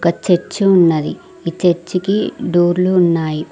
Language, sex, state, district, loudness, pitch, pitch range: Telugu, female, Telangana, Mahabubabad, -15 LUFS, 175 Hz, 170-180 Hz